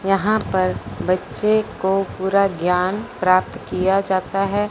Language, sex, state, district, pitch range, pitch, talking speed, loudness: Hindi, male, Punjab, Fazilka, 185-205 Hz, 195 Hz, 125 wpm, -20 LUFS